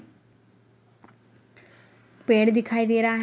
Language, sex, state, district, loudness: Hindi, female, Bihar, Araria, -22 LUFS